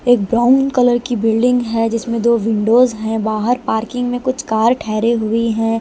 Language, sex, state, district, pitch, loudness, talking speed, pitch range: Hindi, female, Delhi, New Delhi, 235 Hz, -16 LUFS, 185 wpm, 225-245 Hz